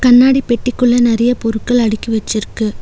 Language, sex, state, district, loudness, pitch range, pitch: Tamil, female, Tamil Nadu, Nilgiris, -14 LUFS, 220-245 Hz, 235 Hz